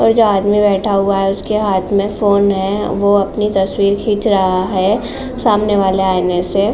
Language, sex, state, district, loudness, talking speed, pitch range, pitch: Hindi, female, Uttar Pradesh, Jalaun, -14 LUFS, 195 wpm, 195-210 Hz, 200 Hz